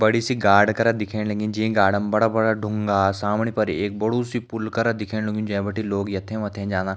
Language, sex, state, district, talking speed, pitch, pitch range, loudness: Garhwali, male, Uttarakhand, Uttarkashi, 225 wpm, 105 Hz, 100-110 Hz, -22 LUFS